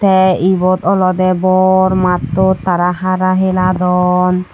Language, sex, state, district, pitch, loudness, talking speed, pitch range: Chakma, female, Tripura, Unakoti, 185 Hz, -12 LUFS, 105 wpm, 180-185 Hz